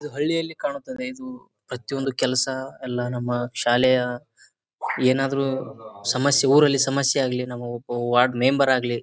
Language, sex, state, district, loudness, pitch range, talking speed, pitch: Kannada, male, Karnataka, Bijapur, -22 LUFS, 125-140 Hz, 120 wpm, 130 Hz